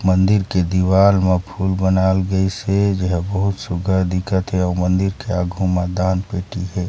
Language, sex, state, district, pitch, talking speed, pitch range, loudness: Chhattisgarhi, male, Chhattisgarh, Sarguja, 95 Hz, 185 wpm, 90-95 Hz, -18 LUFS